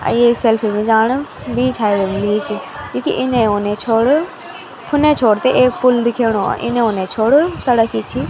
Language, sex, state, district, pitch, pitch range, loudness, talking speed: Garhwali, female, Uttarakhand, Tehri Garhwal, 235 Hz, 210-255 Hz, -15 LUFS, 190 wpm